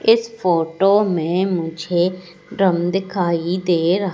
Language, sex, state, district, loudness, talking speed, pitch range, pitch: Hindi, female, Madhya Pradesh, Katni, -19 LUFS, 115 wpm, 170-195 Hz, 180 Hz